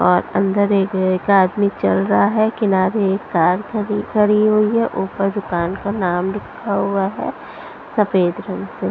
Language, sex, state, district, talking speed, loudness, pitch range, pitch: Hindi, female, Punjab, Pathankot, 175 wpm, -18 LUFS, 185-210 Hz, 200 Hz